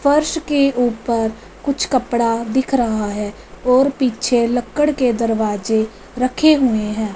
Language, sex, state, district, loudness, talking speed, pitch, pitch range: Hindi, female, Punjab, Fazilka, -18 LUFS, 135 wpm, 240 Hz, 220-265 Hz